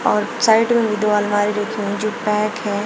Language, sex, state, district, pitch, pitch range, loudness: Hindi, female, Uttar Pradesh, Shamli, 210 Hz, 205-220 Hz, -18 LUFS